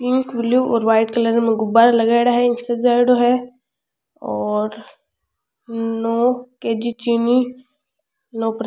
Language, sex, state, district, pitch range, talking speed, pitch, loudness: Rajasthani, female, Rajasthan, Churu, 230-250 Hz, 125 wpm, 235 Hz, -18 LUFS